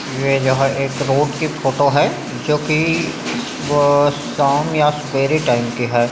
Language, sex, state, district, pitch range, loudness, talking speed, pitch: Chhattisgarhi, male, Chhattisgarh, Bilaspur, 135-150 Hz, -17 LUFS, 145 wpm, 145 Hz